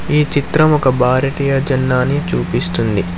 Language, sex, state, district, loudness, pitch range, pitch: Telugu, male, Telangana, Hyderabad, -15 LUFS, 125-145 Hz, 130 Hz